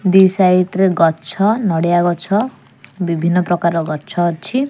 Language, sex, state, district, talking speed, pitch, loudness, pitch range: Odia, female, Odisha, Khordha, 130 wpm, 180 Hz, -16 LUFS, 170-195 Hz